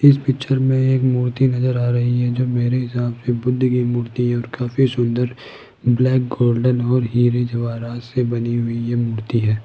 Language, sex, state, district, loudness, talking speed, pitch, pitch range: Hindi, male, Rajasthan, Jaipur, -19 LUFS, 195 wpm, 120 Hz, 120-125 Hz